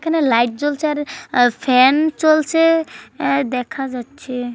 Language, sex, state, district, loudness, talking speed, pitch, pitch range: Bengali, female, West Bengal, Kolkata, -17 LUFS, 105 wpm, 275 Hz, 250-310 Hz